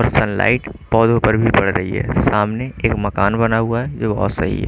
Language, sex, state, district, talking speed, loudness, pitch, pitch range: Hindi, male, Chandigarh, Chandigarh, 245 wpm, -17 LUFS, 115 Hz, 100-115 Hz